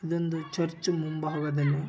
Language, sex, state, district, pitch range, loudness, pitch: Kannada, male, Karnataka, Raichur, 150-170 Hz, -30 LUFS, 160 Hz